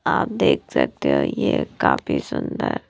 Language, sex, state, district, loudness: Hindi, female, Punjab, Kapurthala, -21 LUFS